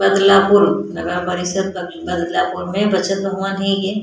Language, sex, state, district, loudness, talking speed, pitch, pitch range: Hindi, female, Maharashtra, Chandrapur, -17 LUFS, 165 wpm, 195 Hz, 180-195 Hz